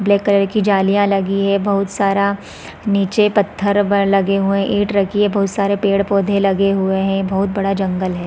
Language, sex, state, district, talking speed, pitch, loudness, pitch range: Hindi, female, Chhattisgarh, Raigarh, 210 wpm, 200 Hz, -16 LUFS, 195-200 Hz